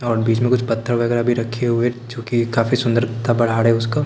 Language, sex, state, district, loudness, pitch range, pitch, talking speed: Hindi, male, Bihar, Patna, -18 LUFS, 115-120 Hz, 120 Hz, 220 wpm